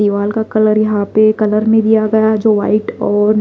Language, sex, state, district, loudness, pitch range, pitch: Hindi, female, Delhi, New Delhi, -13 LUFS, 210-220 Hz, 215 Hz